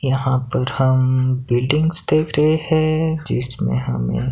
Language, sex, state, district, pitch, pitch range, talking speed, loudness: Hindi, male, Himachal Pradesh, Shimla, 130 Hz, 125-155 Hz, 125 wpm, -18 LUFS